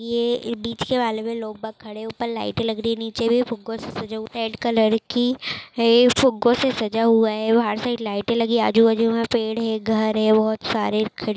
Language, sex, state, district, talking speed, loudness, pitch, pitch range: Hindi, female, Uttar Pradesh, Etah, 230 wpm, -21 LUFS, 230 Hz, 220-235 Hz